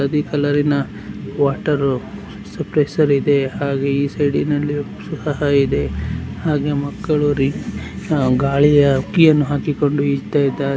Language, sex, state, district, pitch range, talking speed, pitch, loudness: Kannada, male, Karnataka, Dakshina Kannada, 140-150 Hz, 100 wpm, 145 Hz, -18 LUFS